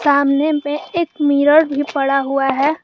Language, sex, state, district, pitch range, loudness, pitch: Hindi, male, Jharkhand, Garhwa, 275-300 Hz, -16 LUFS, 285 Hz